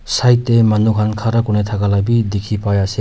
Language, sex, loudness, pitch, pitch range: Nagamese, male, -15 LUFS, 105 Hz, 105-115 Hz